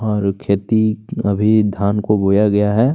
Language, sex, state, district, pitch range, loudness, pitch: Hindi, male, Chhattisgarh, Kabirdham, 100-110 Hz, -16 LUFS, 105 Hz